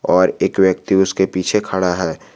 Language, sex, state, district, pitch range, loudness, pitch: Hindi, male, Jharkhand, Garhwa, 90-95 Hz, -16 LUFS, 95 Hz